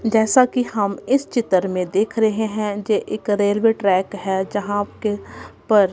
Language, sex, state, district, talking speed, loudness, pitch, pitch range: Hindi, female, Punjab, Kapurthala, 170 wpm, -20 LUFS, 210 Hz, 200-225 Hz